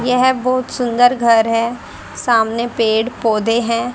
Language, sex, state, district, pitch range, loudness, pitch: Hindi, female, Haryana, Rohtak, 230-245 Hz, -15 LUFS, 235 Hz